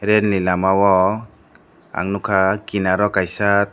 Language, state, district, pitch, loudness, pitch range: Kokborok, Tripura, Dhalai, 100 Hz, -18 LUFS, 95-105 Hz